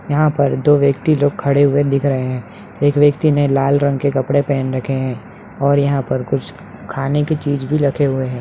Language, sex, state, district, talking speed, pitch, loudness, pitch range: Hindi, male, Bihar, Bhagalpur, 220 wpm, 140 Hz, -16 LUFS, 135-145 Hz